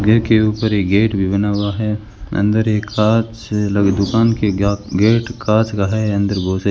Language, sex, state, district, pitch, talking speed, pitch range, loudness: Hindi, male, Rajasthan, Bikaner, 105 Hz, 195 wpm, 100-110 Hz, -16 LUFS